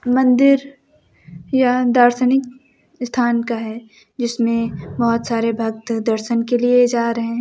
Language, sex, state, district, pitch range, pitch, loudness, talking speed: Hindi, female, Uttar Pradesh, Lucknow, 230-250 Hz, 235 Hz, -17 LUFS, 130 wpm